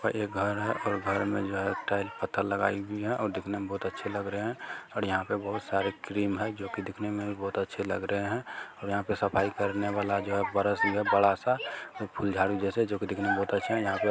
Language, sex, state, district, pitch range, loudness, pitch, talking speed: Hindi, male, Bihar, Jamui, 100-105 Hz, -30 LUFS, 100 Hz, 220 wpm